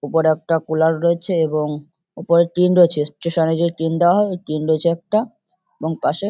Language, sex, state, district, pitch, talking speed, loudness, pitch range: Bengali, male, West Bengal, Kolkata, 165 Hz, 190 wpm, -18 LUFS, 160-175 Hz